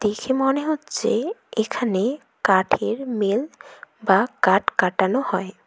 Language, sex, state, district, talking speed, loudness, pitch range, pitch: Bengali, female, West Bengal, Cooch Behar, 105 wpm, -22 LUFS, 205-270 Hz, 235 Hz